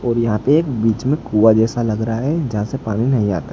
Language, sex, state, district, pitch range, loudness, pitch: Hindi, male, Gujarat, Gandhinagar, 110-130 Hz, -17 LUFS, 115 Hz